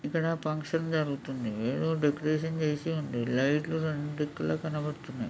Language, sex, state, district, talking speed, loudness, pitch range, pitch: Telugu, male, Andhra Pradesh, Krishna, 135 wpm, -31 LUFS, 135-160 Hz, 150 Hz